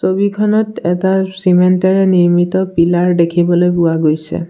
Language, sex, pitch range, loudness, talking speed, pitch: Assamese, male, 175-190 Hz, -13 LUFS, 105 wpm, 180 Hz